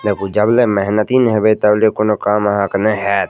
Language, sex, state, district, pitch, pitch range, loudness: Maithili, male, Bihar, Madhepura, 105 Hz, 100-110 Hz, -14 LUFS